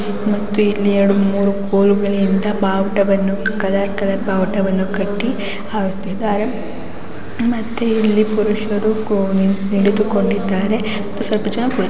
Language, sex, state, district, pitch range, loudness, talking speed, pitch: Kannada, female, Karnataka, Gulbarga, 195-215 Hz, -17 LUFS, 100 wpm, 205 Hz